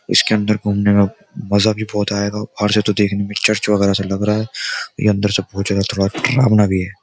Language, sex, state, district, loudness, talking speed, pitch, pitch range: Hindi, male, Uttar Pradesh, Jyotiba Phule Nagar, -17 LUFS, 230 wpm, 105 Hz, 100-105 Hz